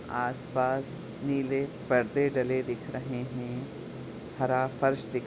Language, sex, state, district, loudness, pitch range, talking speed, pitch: Hindi, male, Chhattisgarh, Sukma, -30 LUFS, 125-135 Hz, 125 wpm, 130 Hz